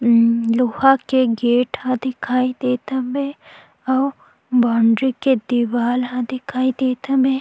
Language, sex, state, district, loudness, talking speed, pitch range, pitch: Chhattisgarhi, female, Chhattisgarh, Sukma, -19 LUFS, 130 wpm, 240-265 Hz, 255 Hz